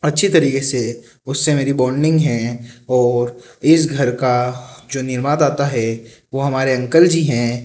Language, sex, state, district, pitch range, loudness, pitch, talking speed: Hindi, male, Rajasthan, Jaipur, 120-145 Hz, -17 LUFS, 130 Hz, 150 wpm